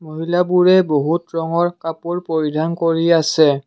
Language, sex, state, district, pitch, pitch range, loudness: Assamese, male, Assam, Kamrup Metropolitan, 165 Hz, 160-175 Hz, -17 LUFS